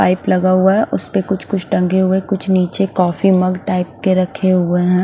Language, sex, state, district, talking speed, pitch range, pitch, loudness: Hindi, male, Punjab, Fazilka, 215 wpm, 180-190 Hz, 185 Hz, -15 LUFS